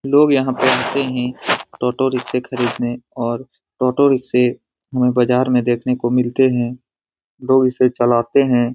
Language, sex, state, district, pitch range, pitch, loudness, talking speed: Hindi, male, Bihar, Lakhisarai, 120-130 Hz, 125 Hz, -17 LUFS, 150 wpm